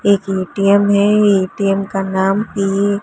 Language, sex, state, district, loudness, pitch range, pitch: Hindi, female, Gujarat, Gandhinagar, -15 LUFS, 195-200 Hz, 195 Hz